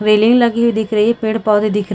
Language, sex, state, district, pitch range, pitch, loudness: Hindi, female, Chhattisgarh, Raigarh, 210-230 Hz, 220 Hz, -14 LUFS